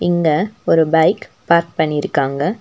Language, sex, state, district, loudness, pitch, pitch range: Tamil, female, Tamil Nadu, Nilgiris, -16 LUFS, 165 Hz, 155-175 Hz